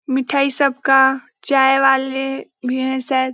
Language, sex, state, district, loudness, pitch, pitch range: Hindi, female, Chhattisgarh, Balrampur, -17 LUFS, 265 Hz, 260-270 Hz